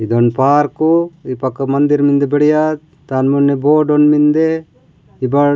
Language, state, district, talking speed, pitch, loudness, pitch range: Gondi, Chhattisgarh, Sukma, 160 wpm, 145 Hz, -14 LUFS, 135-155 Hz